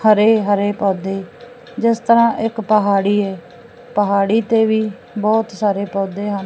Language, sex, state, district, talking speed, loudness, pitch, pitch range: Punjabi, female, Punjab, Fazilka, 140 wpm, -17 LUFS, 215 Hz, 200-230 Hz